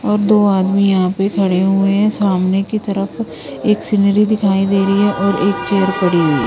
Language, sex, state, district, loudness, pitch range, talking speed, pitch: Hindi, female, Punjab, Kapurthala, -15 LUFS, 195-205 Hz, 205 wpm, 195 Hz